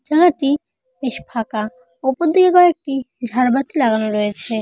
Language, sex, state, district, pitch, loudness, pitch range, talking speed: Bengali, female, West Bengal, Jalpaiguri, 255 Hz, -17 LUFS, 225-300 Hz, 115 wpm